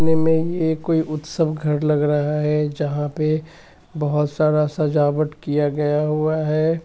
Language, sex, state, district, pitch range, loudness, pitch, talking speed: Hindi, male, Bihar, Sitamarhi, 150-160 Hz, -20 LUFS, 150 Hz, 140 wpm